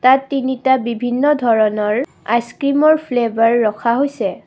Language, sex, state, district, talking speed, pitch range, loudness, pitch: Assamese, female, Assam, Kamrup Metropolitan, 120 wpm, 230-270 Hz, -16 LUFS, 245 Hz